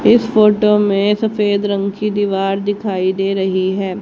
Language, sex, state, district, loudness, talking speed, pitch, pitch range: Hindi, female, Haryana, Jhajjar, -15 LUFS, 165 wpm, 200 Hz, 195-210 Hz